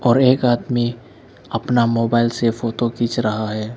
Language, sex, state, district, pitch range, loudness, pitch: Hindi, male, Arunachal Pradesh, Lower Dibang Valley, 115-120 Hz, -19 LUFS, 120 Hz